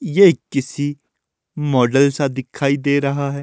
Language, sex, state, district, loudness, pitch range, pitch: Hindi, male, Himachal Pradesh, Shimla, -18 LUFS, 135-145 Hz, 140 Hz